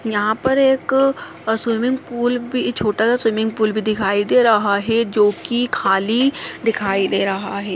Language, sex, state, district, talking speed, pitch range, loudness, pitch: Hindi, male, Bihar, Muzaffarpur, 180 wpm, 205-245 Hz, -17 LUFS, 225 Hz